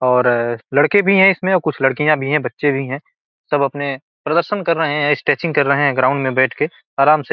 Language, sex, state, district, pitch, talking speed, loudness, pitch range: Hindi, male, Bihar, Gopalganj, 145 Hz, 235 wpm, -16 LUFS, 135-155 Hz